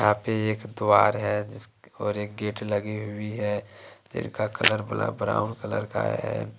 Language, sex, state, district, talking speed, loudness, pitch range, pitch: Hindi, male, Jharkhand, Deoghar, 165 wpm, -27 LUFS, 105-110 Hz, 105 Hz